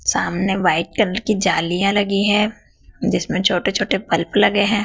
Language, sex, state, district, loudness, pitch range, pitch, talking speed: Hindi, female, Madhya Pradesh, Dhar, -18 LUFS, 185-210 Hz, 200 Hz, 160 wpm